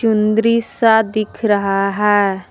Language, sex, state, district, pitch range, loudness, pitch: Hindi, female, Jharkhand, Palamu, 200-225 Hz, -15 LUFS, 215 Hz